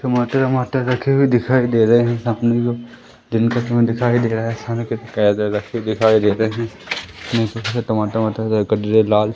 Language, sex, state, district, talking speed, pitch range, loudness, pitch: Hindi, female, Madhya Pradesh, Umaria, 160 wpm, 110-120 Hz, -18 LUFS, 115 Hz